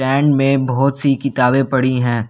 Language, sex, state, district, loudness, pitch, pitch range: Hindi, male, Delhi, New Delhi, -15 LUFS, 135 Hz, 125-135 Hz